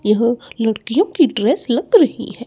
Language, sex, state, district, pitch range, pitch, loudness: Hindi, male, Chandigarh, Chandigarh, 225-305 Hz, 240 Hz, -16 LUFS